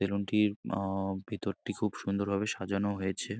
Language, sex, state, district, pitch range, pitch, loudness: Bengali, male, West Bengal, Jalpaiguri, 95-105 Hz, 100 Hz, -33 LUFS